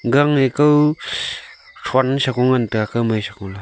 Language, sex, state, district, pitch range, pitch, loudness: Wancho, male, Arunachal Pradesh, Longding, 110-140 Hz, 130 Hz, -18 LUFS